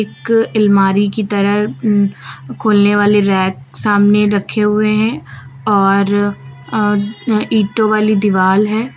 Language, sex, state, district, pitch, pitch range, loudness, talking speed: Hindi, female, Uttar Pradesh, Lucknow, 205 Hz, 200-215 Hz, -14 LUFS, 120 wpm